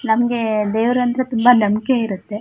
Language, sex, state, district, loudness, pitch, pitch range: Kannada, female, Karnataka, Shimoga, -17 LUFS, 230 Hz, 215-245 Hz